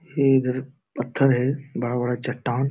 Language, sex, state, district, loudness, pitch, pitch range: Hindi, male, Bihar, Jamui, -23 LUFS, 130 Hz, 125-135 Hz